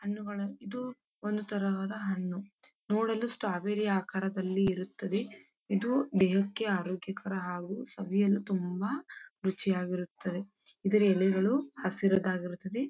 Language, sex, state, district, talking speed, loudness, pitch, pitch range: Kannada, female, Karnataka, Dharwad, 100 wpm, -32 LUFS, 200 Hz, 190-215 Hz